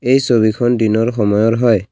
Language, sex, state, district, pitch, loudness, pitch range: Assamese, male, Assam, Kamrup Metropolitan, 115 Hz, -14 LUFS, 110-120 Hz